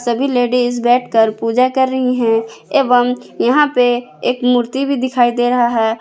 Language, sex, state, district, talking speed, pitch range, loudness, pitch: Hindi, female, Jharkhand, Palamu, 170 wpm, 240-255 Hz, -15 LUFS, 245 Hz